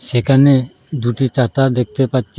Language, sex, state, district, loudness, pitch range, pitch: Bengali, male, Assam, Hailakandi, -15 LUFS, 125-135 Hz, 130 Hz